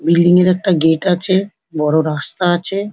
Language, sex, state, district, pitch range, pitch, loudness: Bengali, female, West Bengal, North 24 Parganas, 160-190 Hz, 180 Hz, -15 LUFS